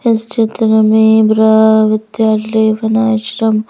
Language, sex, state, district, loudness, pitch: Hindi, female, Madhya Pradesh, Bhopal, -11 LUFS, 220 Hz